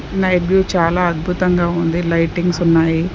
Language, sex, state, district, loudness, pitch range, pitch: Telugu, female, Andhra Pradesh, Sri Satya Sai, -16 LUFS, 165-180 Hz, 175 Hz